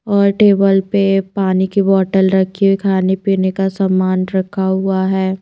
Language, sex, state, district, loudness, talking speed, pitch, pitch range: Hindi, female, Himachal Pradesh, Shimla, -14 LUFS, 165 wpm, 190 Hz, 190-195 Hz